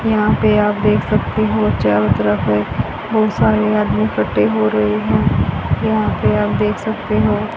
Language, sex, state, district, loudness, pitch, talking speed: Hindi, female, Haryana, Rohtak, -16 LUFS, 105 Hz, 175 wpm